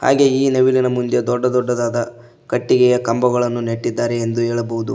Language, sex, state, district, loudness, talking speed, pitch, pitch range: Kannada, male, Karnataka, Koppal, -17 LUFS, 120 wpm, 120 Hz, 120-125 Hz